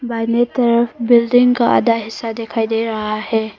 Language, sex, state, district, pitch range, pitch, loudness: Hindi, female, Arunachal Pradesh, Papum Pare, 225-240 Hz, 230 Hz, -16 LUFS